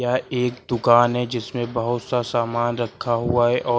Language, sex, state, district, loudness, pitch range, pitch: Hindi, male, Uttar Pradesh, Lucknow, -21 LUFS, 120-125 Hz, 120 Hz